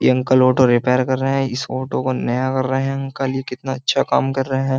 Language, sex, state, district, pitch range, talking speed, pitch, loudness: Hindi, male, Uttar Pradesh, Jyotiba Phule Nagar, 130-135 Hz, 275 wpm, 130 Hz, -18 LUFS